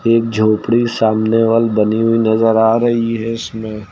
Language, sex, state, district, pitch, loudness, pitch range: Hindi, male, Uttar Pradesh, Lucknow, 115 Hz, -14 LUFS, 110-115 Hz